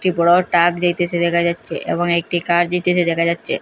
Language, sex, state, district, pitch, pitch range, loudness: Bengali, female, Assam, Hailakandi, 175 Hz, 170-175 Hz, -17 LUFS